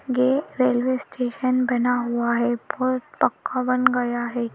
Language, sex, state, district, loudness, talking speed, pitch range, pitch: Hindi, female, Madhya Pradesh, Bhopal, -23 LUFS, 145 wpm, 240-255 Hz, 250 Hz